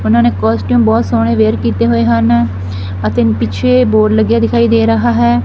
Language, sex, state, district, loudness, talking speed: Punjabi, female, Punjab, Fazilka, -12 LUFS, 200 wpm